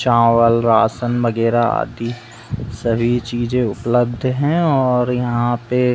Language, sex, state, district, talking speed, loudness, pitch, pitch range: Hindi, male, Uttar Pradesh, Budaun, 120 wpm, -17 LUFS, 120 Hz, 115-125 Hz